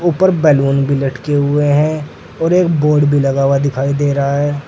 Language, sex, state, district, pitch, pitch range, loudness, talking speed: Hindi, male, Uttar Pradesh, Saharanpur, 145 Hz, 140-150 Hz, -14 LUFS, 205 wpm